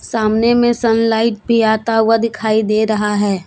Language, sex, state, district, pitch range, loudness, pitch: Hindi, female, Jharkhand, Deoghar, 215-230 Hz, -15 LUFS, 225 Hz